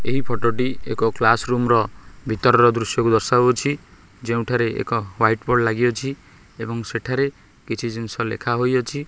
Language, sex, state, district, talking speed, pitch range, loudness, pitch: Odia, male, Odisha, Khordha, 140 wpm, 115-125 Hz, -20 LUFS, 115 Hz